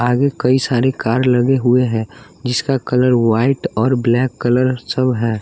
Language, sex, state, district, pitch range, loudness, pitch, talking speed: Hindi, male, Bihar, West Champaran, 120-130 Hz, -16 LUFS, 125 Hz, 165 wpm